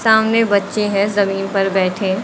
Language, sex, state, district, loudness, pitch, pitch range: Hindi, female, Uttar Pradesh, Lucknow, -16 LUFS, 200 Hz, 195-210 Hz